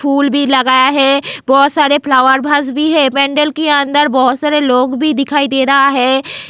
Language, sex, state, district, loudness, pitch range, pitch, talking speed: Hindi, female, Goa, North and South Goa, -11 LUFS, 265-290 Hz, 280 Hz, 195 wpm